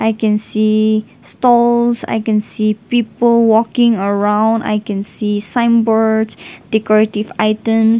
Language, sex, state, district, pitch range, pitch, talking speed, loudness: English, female, Nagaland, Dimapur, 215-230 Hz, 220 Hz, 120 wpm, -14 LUFS